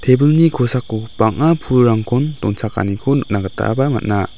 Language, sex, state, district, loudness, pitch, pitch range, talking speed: Garo, male, Meghalaya, West Garo Hills, -16 LUFS, 120 Hz, 105-135 Hz, 110 wpm